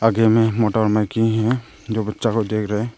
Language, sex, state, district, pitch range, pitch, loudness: Hindi, male, Arunachal Pradesh, Longding, 105-115 Hz, 110 Hz, -19 LUFS